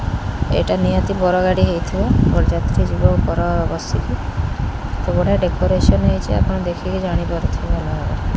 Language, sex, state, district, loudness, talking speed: Odia, female, Odisha, Khordha, -18 LUFS, 130 wpm